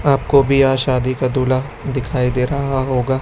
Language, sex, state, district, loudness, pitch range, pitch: Hindi, male, Chhattisgarh, Raipur, -17 LUFS, 130-135 Hz, 130 Hz